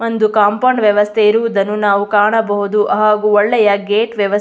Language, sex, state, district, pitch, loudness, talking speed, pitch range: Kannada, female, Karnataka, Mysore, 210 Hz, -13 LUFS, 150 wpm, 205-220 Hz